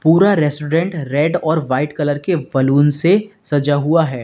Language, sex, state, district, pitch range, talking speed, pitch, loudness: Hindi, male, Uttar Pradesh, Lalitpur, 145-170 Hz, 170 wpm, 150 Hz, -16 LUFS